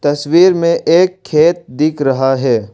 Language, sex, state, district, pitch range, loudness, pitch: Hindi, male, Arunachal Pradesh, Longding, 135-170 Hz, -12 LUFS, 155 Hz